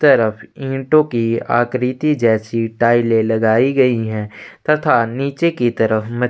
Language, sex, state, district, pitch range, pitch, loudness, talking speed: Hindi, male, Chhattisgarh, Sukma, 110-135 Hz, 120 Hz, -16 LUFS, 145 wpm